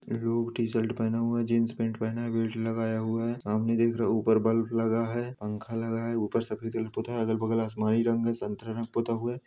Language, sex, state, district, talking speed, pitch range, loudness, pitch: Hindi, male, Jharkhand, Sahebganj, 245 wpm, 110-115 Hz, -29 LUFS, 115 Hz